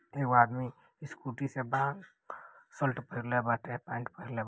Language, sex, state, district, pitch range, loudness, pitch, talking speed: Hindi, male, Uttar Pradesh, Deoria, 125-140 Hz, -33 LUFS, 130 Hz, 150 wpm